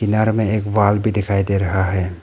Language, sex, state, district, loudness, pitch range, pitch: Hindi, male, Arunachal Pradesh, Papum Pare, -18 LUFS, 95-105 Hz, 100 Hz